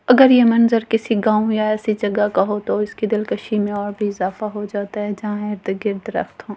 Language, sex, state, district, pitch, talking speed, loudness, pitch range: Hindi, female, Delhi, New Delhi, 210 Hz, 220 wpm, -19 LUFS, 205-220 Hz